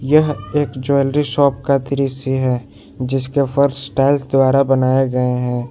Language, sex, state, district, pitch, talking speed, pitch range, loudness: Hindi, male, Jharkhand, Garhwa, 135 Hz, 145 wpm, 130-140 Hz, -17 LUFS